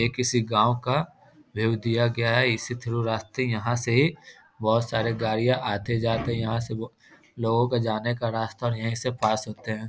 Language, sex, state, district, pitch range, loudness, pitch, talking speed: Hindi, male, Bihar, Muzaffarpur, 110-120 Hz, -25 LUFS, 115 Hz, 180 wpm